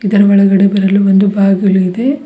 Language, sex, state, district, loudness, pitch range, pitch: Kannada, female, Karnataka, Bidar, -10 LUFS, 195-200 Hz, 200 Hz